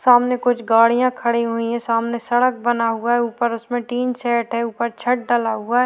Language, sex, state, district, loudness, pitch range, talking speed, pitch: Hindi, female, Bihar, Vaishali, -19 LUFS, 230-245 Hz, 215 wpm, 240 Hz